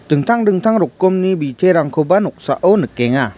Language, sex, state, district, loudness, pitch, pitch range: Garo, male, Meghalaya, West Garo Hills, -15 LUFS, 175 Hz, 140-190 Hz